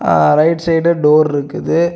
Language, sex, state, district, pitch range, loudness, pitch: Tamil, male, Tamil Nadu, Kanyakumari, 150-170 Hz, -13 LUFS, 165 Hz